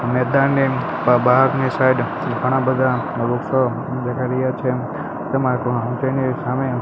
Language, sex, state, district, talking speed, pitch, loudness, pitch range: Gujarati, male, Gujarat, Gandhinagar, 60 wpm, 130 Hz, -19 LUFS, 125-130 Hz